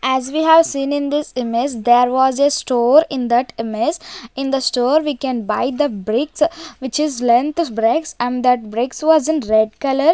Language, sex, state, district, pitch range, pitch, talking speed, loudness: English, female, Punjab, Kapurthala, 240-300 Hz, 265 Hz, 185 wpm, -17 LUFS